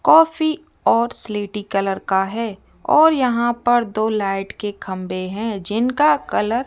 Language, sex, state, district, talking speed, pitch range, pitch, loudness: Hindi, female, Rajasthan, Jaipur, 155 wpm, 200-250 Hz, 220 Hz, -19 LUFS